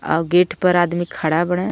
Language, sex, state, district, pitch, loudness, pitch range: Bhojpuri, female, Jharkhand, Palamu, 175 Hz, -18 LUFS, 170-180 Hz